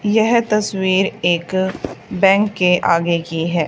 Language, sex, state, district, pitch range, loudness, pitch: Hindi, female, Haryana, Charkhi Dadri, 170-205 Hz, -16 LUFS, 190 Hz